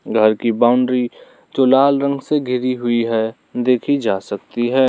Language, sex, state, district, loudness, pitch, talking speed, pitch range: Hindi, male, Arunachal Pradesh, Lower Dibang Valley, -17 LUFS, 125 Hz, 170 wpm, 120-135 Hz